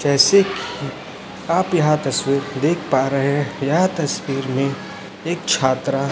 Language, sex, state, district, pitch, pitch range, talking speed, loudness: Hindi, male, Chhattisgarh, Raipur, 140 Hz, 135-165 Hz, 125 wpm, -19 LUFS